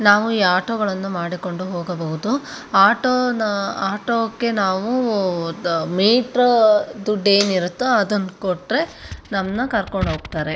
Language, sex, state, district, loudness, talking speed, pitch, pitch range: Kannada, female, Karnataka, Shimoga, -19 LUFS, 95 wpm, 205 Hz, 185-235 Hz